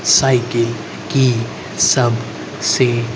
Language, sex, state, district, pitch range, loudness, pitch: Hindi, male, Haryana, Rohtak, 115-135 Hz, -16 LUFS, 120 Hz